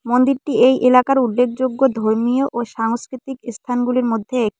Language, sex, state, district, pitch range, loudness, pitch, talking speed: Bengali, female, West Bengal, Cooch Behar, 235-260 Hz, -17 LUFS, 250 Hz, 130 wpm